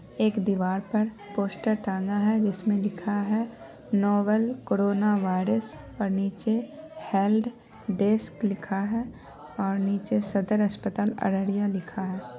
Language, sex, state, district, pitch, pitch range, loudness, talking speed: Hindi, female, Bihar, Araria, 205 Hz, 195-215 Hz, -27 LUFS, 120 wpm